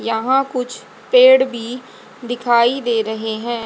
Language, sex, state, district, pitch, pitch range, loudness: Hindi, female, Haryana, Jhajjar, 240 Hz, 230-260 Hz, -16 LUFS